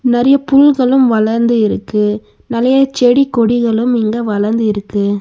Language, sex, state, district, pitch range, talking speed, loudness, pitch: Tamil, female, Tamil Nadu, Nilgiris, 215-255 Hz, 105 wpm, -12 LUFS, 235 Hz